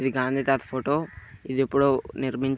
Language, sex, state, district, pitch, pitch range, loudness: Telugu, male, Andhra Pradesh, Krishna, 135 Hz, 130-135 Hz, -25 LUFS